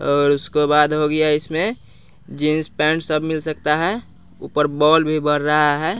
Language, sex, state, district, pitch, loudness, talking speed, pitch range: Hindi, male, Bihar, West Champaran, 150 Hz, -18 LUFS, 180 wpm, 150-155 Hz